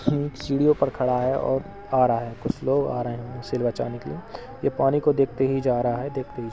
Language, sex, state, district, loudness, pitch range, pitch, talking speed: Hindi, male, Uttar Pradesh, Etah, -24 LUFS, 120-140 Hz, 130 Hz, 255 wpm